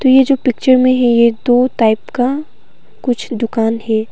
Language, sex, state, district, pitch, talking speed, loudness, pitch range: Hindi, female, Arunachal Pradesh, Papum Pare, 245 Hz, 175 wpm, -14 LUFS, 230-255 Hz